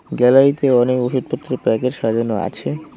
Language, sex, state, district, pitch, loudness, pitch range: Bengali, male, West Bengal, Cooch Behar, 125 Hz, -17 LUFS, 115-135 Hz